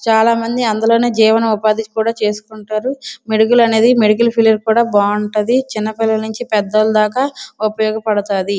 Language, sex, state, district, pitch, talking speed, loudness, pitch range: Telugu, female, Andhra Pradesh, Srikakulam, 220 Hz, 140 wpm, -14 LUFS, 215-230 Hz